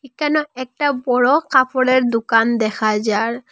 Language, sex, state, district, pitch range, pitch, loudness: Bengali, female, Assam, Hailakandi, 230-275 Hz, 255 Hz, -17 LUFS